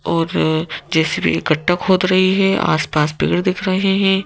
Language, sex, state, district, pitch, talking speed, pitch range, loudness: Hindi, female, Madhya Pradesh, Bhopal, 180 Hz, 170 wpm, 160-190 Hz, -17 LUFS